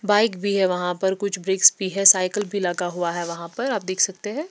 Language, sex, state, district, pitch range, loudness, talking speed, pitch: Hindi, female, Bihar, West Champaran, 180-205 Hz, -21 LUFS, 265 wpm, 190 Hz